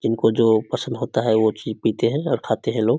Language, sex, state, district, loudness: Hindi, male, Bihar, Samastipur, -21 LUFS